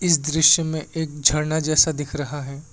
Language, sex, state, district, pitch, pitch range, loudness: Hindi, male, Assam, Kamrup Metropolitan, 155 Hz, 145-160 Hz, -19 LUFS